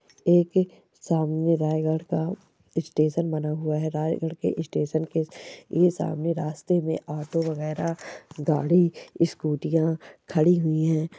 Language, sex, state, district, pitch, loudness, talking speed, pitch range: Hindi, female, Chhattisgarh, Raigarh, 160 Hz, -25 LUFS, 125 wpm, 155-165 Hz